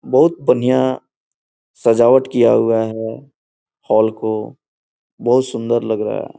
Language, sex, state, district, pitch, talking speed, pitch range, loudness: Hindi, male, Bihar, Gopalganj, 120 Hz, 120 wpm, 110-130 Hz, -16 LUFS